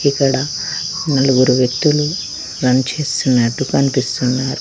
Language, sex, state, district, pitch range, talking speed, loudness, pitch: Telugu, female, Telangana, Mahabubabad, 130-150 Hz, 80 wpm, -16 LUFS, 135 Hz